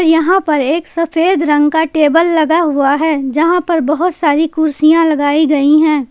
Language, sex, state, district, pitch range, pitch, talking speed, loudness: Hindi, female, Jharkhand, Palamu, 295-330 Hz, 315 Hz, 175 wpm, -12 LUFS